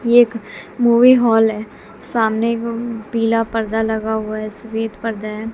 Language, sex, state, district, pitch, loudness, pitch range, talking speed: Hindi, female, Bihar, West Champaran, 225 Hz, -17 LUFS, 220-230 Hz, 175 wpm